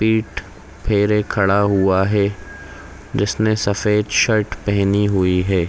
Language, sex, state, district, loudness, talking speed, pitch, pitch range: Hindi, male, Chhattisgarh, Raigarh, -18 LUFS, 115 wpm, 100 Hz, 95-105 Hz